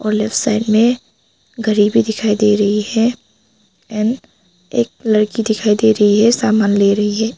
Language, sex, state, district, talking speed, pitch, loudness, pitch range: Hindi, female, Arunachal Pradesh, Lower Dibang Valley, 160 wpm, 215 Hz, -15 LUFS, 210-225 Hz